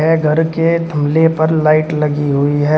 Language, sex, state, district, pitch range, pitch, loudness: Hindi, male, Uttar Pradesh, Shamli, 150-160 Hz, 155 Hz, -14 LUFS